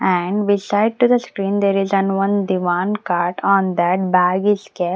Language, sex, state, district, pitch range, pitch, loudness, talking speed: English, female, Maharashtra, Mumbai Suburban, 180-205 Hz, 195 Hz, -18 LUFS, 195 wpm